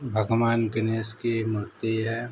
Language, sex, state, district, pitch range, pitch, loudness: Hindi, male, Uttar Pradesh, Varanasi, 110-115 Hz, 115 Hz, -26 LUFS